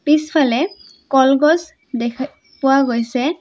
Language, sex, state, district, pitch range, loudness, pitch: Assamese, female, Assam, Sonitpur, 265-310 Hz, -17 LUFS, 275 Hz